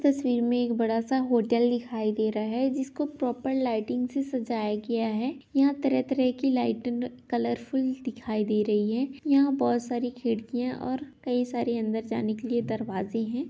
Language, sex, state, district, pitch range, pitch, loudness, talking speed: Hindi, female, Bihar, Jahanabad, 225-265 Hz, 245 Hz, -28 LUFS, 180 wpm